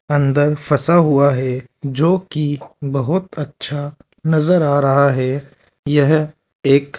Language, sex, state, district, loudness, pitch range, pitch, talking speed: Hindi, male, Rajasthan, Jaipur, -16 LUFS, 140-155 Hz, 145 Hz, 130 wpm